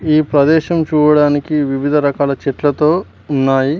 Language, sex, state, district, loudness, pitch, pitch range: Telugu, male, Telangana, Mahabubabad, -14 LUFS, 145 Hz, 140-155 Hz